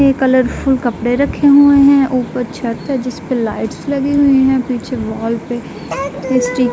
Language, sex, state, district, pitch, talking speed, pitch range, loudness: Hindi, female, Uttar Pradesh, Jalaun, 255 Hz, 170 wpm, 240-275 Hz, -14 LUFS